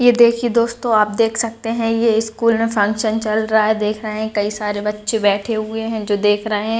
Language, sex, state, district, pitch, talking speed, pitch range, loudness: Hindi, female, Bihar, Gaya, 220 Hz, 240 wpm, 210-230 Hz, -18 LUFS